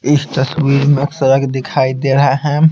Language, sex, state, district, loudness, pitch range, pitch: Hindi, male, Bihar, Patna, -14 LUFS, 135-145 Hz, 140 Hz